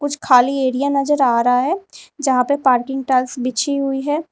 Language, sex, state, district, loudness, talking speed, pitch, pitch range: Hindi, female, Uttar Pradesh, Lalitpur, -17 LUFS, 195 wpm, 270 Hz, 255-285 Hz